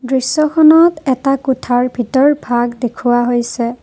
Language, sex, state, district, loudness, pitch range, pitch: Assamese, female, Assam, Kamrup Metropolitan, -13 LUFS, 240-275 Hz, 255 Hz